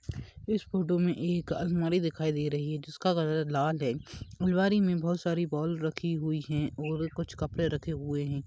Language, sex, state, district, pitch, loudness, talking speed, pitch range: Hindi, male, Jharkhand, Sahebganj, 160 Hz, -31 LUFS, 190 wpm, 150-175 Hz